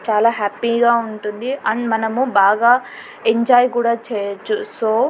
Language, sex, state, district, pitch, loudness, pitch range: Telugu, female, Andhra Pradesh, Anantapur, 230 Hz, -17 LUFS, 215-240 Hz